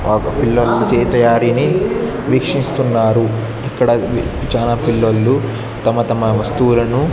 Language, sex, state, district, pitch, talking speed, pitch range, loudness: Telugu, male, Andhra Pradesh, Sri Satya Sai, 120 Hz, 90 wpm, 115-125 Hz, -15 LUFS